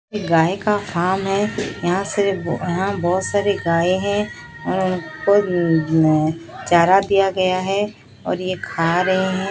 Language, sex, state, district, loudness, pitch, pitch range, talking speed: Hindi, female, Odisha, Sambalpur, -19 LUFS, 185 Hz, 170-200 Hz, 140 wpm